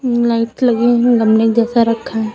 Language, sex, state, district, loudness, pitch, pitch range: Hindi, female, Uttar Pradesh, Lucknow, -14 LUFS, 235 Hz, 230-240 Hz